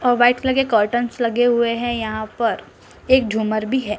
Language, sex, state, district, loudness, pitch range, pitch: Hindi, male, Maharashtra, Gondia, -19 LUFS, 220-245 Hz, 240 Hz